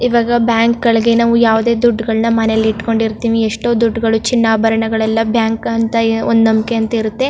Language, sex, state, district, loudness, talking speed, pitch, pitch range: Kannada, female, Karnataka, Chamarajanagar, -14 LUFS, 155 wpm, 225 Hz, 225-235 Hz